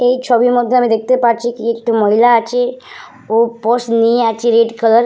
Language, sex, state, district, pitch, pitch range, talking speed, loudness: Bengali, female, West Bengal, Purulia, 235 Hz, 230-245 Hz, 200 wpm, -13 LUFS